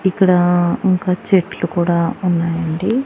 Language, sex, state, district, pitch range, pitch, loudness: Telugu, female, Andhra Pradesh, Annamaya, 175-190 Hz, 180 Hz, -16 LUFS